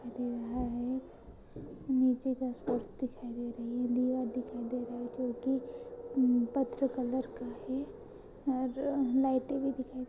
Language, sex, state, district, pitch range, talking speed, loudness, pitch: Hindi, female, Maharashtra, Sindhudurg, 245-265 Hz, 155 wpm, -34 LUFS, 255 Hz